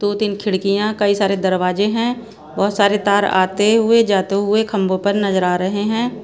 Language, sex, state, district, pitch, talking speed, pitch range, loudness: Hindi, female, Bihar, Patna, 200 Hz, 185 wpm, 195-215 Hz, -17 LUFS